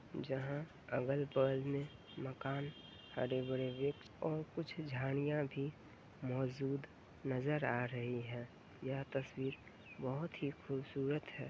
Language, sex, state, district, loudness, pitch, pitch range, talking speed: Hindi, male, Uttar Pradesh, Ghazipur, -42 LUFS, 135 Hz, 130-145 Hz, 115 wpm